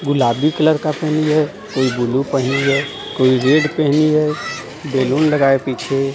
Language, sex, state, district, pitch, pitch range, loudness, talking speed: Hindi, male, Jharkhand, Deoghar, 140 Hz, 135-155 Hz, -16 LUFS, 155 wpm